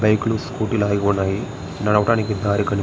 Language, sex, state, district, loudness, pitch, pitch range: Telugu, male, Andhra Pradesh, Srikakulam, -20 LUFS, 105 Hz, 100-110 Hz